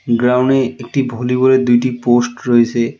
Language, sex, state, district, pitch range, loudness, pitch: Bengali, male, West Bengal, Alipurduar, 120-130 Hz, -14 LUFS, 125 Hz